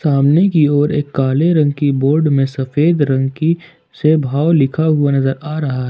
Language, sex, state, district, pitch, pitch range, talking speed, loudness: Hindi, male, Jharkhand, Ranchi, 145 Hz, 135-155 Hz, 205 wpm, -15 LUFS